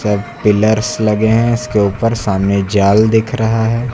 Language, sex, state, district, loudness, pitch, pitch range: Hindi, male, Uttar Pradesh, Lucknow, -13 LUFS, 110 Hz, 105-115 Hz